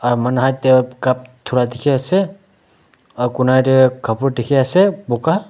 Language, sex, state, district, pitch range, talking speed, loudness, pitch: Nagamese, male, Nagaland, Dimapur, 125-145 Hz, 130 wpm, -16 LUFS, 130 Hz